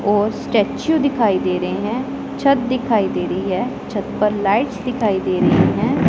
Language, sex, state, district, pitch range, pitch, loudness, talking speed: Hindi, male, Punjab, Pathankot, 205-260 Hz, 225 Hz, -18 LUFS, 175 wpm